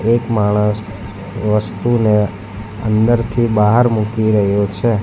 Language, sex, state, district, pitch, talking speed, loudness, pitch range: Gujarati, male, Gujarat, Valsad, 105 Hz, 95 wpm, -15 LUFS, 105-115 Hz